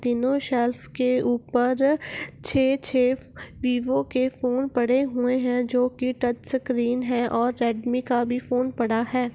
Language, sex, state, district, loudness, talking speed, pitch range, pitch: Hindi, female, Bihar, Gopalganj, -24 LUFS, 160 wpm, 245-255 Hz, 250 Hz